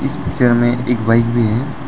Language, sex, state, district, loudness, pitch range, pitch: Hindi, male, Arunachal Pradesh, Lower Dibang Valley, -15 LUFS, 115-125 Hz, 120 Hz